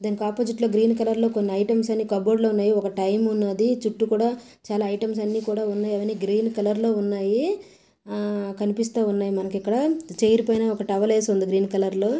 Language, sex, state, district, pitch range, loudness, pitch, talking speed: Telugu, female, Karnataka, Raichur, 205-225 Hz, -23 LUFS, 215 Hz, 215 wpm